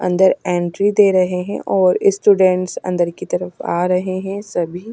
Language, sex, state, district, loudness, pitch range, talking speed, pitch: Hindi, female, Delhi, New Delhi, -17 LUFS, 180-195 Hz, 160 wpm, 185 Hz